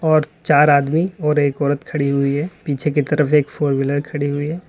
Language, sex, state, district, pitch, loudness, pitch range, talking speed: Hindi, male, Uttar Pradesh, Lalitpur, 145 Hz, -18 LUFS, 145-155 Hz, 230 wpm